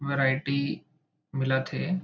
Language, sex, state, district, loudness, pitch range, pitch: Chhattisgarhi, male, Chhattisgarh, Bilaspur, -28 LUFS, 135-150 Hz, 140 Hz